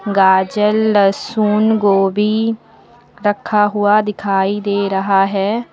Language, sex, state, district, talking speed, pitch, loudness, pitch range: Hindi, female, Uttar Pradesh, Lucknow, 95 wpm, 205 Hz, -15 LUFS, 195-215 Hz